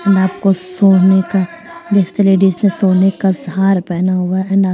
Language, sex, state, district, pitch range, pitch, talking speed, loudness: Hindi, female, Bihar, Gaya, 185-195 Hz, 190 Hz, 150 wpm, -13 LUFS